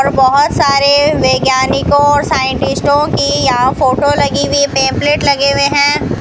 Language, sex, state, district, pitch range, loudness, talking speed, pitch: Hindi, female, Rajasthan, Bikaner, 265-285 Hz, -11 LUFS, 145 wpm, 280 Hz